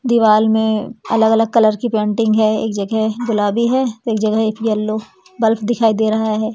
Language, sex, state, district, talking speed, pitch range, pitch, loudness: Hindi, female, Madhya Pradesh, Umaria, 190 wpm, 215-225 Hz, 220 Hz, -16 LUFS